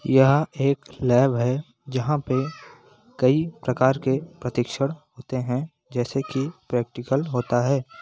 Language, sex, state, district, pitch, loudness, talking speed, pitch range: Hindi, male, Chhattisgarh, Sarguja, 135 Hz, -24 LUFS, 125 wpm, 125-140 Hz